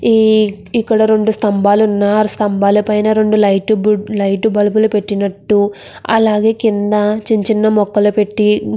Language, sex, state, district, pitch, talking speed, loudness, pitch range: Telugu, female, Andhra Pradesh, Krishna, 210 Hz, 125 wpm, -13 LUFS, 205-220 Hz